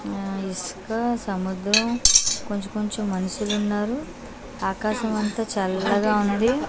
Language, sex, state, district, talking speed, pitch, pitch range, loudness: Telugu, female, Andhra Pradesh, Manyam, 90 wpm, 210 Hz, 195-220 Hz, -23 LUFS